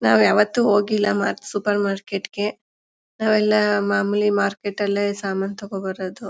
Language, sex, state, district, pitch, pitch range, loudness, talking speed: Kannada, female, Karnataka, Mysore, 205 Hz, 195-210 Hz, -21 LUFS, 125 wpm